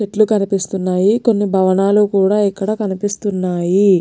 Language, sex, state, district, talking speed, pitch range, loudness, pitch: Telugu, female, Telangana, Nalgonda, 90 wpm, 190-210 Hz, -15 LUFS, 200 Hz